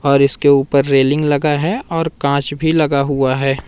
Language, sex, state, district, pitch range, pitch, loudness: Hindi, male, Madhya Pradesh, Umaria, 140-150 Hz, 140 Hz, -15 LUFS